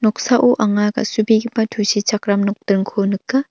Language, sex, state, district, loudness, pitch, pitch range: Garo, female, Meghalaya, North Garo Hills, -17 LUFS, 210 Hz, 205-225 Hz